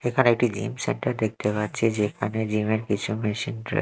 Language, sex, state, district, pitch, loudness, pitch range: Bengali, male, Odisha, Malkangiri, 110 Hz, -25 LUFS, 105-120 Hz